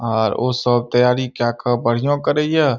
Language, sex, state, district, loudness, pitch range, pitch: Maithili, male, Bihar, Saharsa, -18 LUFS, 120-130 Hz, 125 Hz